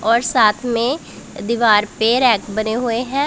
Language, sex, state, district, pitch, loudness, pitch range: Hindi, female, Punjab, Pathankot, 235 Hz, -17 LUFS, 220-250 Hz